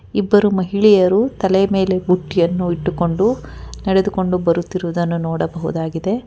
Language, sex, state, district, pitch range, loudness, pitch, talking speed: Kannada, female, Karnataka, Bangalore, 170-195 Hz, -17 LUFS, 185 Hz, 85 wpm